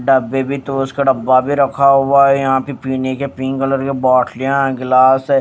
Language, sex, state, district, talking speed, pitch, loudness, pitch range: Hindi, male, Odisha, Nuapada, 220 wpm, 135 Hz, -14 LUFS, 130-140 Hz